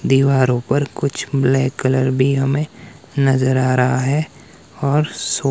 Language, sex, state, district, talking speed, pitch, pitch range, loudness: Hindi, male, Himachal Pradesh, Shimla, 140 wpm, 135 Hz, 130-140 Hz, -17 LUFS